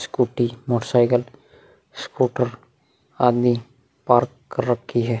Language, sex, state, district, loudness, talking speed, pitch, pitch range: Hindi, male, Uttar Pradesh, Muzaffarnagar, -21 LUFS, 105 wpm, 125 Hz, 120-130 Hz